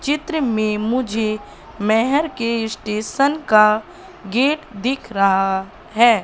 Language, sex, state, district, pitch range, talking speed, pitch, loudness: Hindi, female, Madhya Pradesh, Katni, 215-265 Hz, 105 wpm, 225 Hz, -19 LUFS